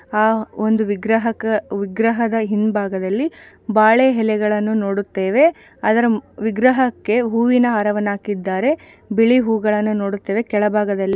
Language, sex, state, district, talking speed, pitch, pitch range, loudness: Kannada, female, Karnataka, Shimoga, 95 wpm, 215 Hz, 205-230 Hz, -18 LUFS